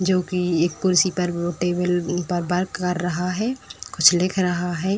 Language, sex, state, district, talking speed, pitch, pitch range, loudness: Hindi, female, Uttar Pradesh, Etah, 190 wpm, 180 Hz, 175-185 Hz, -21 LUFS